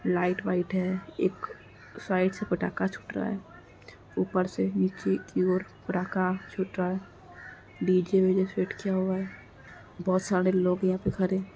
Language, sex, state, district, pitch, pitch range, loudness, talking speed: Hindi, male, Uttar Pradesh, Jalaun, 185 Hz, 180-190 Hz, -29 LUFS, 165 wpm